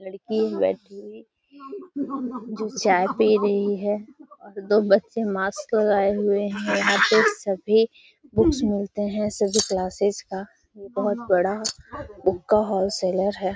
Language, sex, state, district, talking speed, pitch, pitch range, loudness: Hindi, female, Bihar, Gaya, 135 wpm, 205 Hz, 195-220 Hz, -23 LUFS